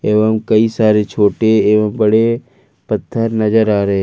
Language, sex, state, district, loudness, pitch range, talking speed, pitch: Hindi, male, Jharkhand, Ranchi, -14 LUFS, 105-110 Hz, 165 wpm, 110 Hz